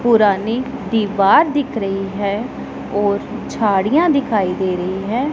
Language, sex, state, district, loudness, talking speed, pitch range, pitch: Hindi, male, Punjab, Pathankot, -17 LUFS, 125 wpm, 195-245 Hz, 205 Hz